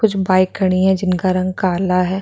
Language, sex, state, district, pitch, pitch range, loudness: Hindi, female, Chhattisgarh, Sukma, 185 Hz, 185-190 Hz, -16 LUFS